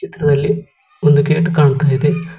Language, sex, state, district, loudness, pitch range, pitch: Kannada, male, Karnataka, Koppal, -14 LUFS, 145-165 Hz, 150 Hz